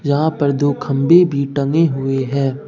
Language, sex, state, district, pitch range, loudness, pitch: Hindi, male, Bihar, Katihar, 135-150 Hz, -16 LUFS, 140 Hz